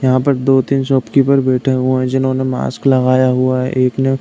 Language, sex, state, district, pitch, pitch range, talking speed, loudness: Hindi, male, Uttar Pradesh, Deoria, 130 Hz, 130-135 Hz, 230 wpm, -14 LUFS